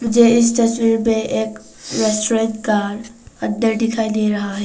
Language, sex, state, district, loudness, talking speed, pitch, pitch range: Hindi, female, Arunachal Pradesh, Papum Pare, -17 LUFS, 155 wpm, 225 Hz, 210-230 Hz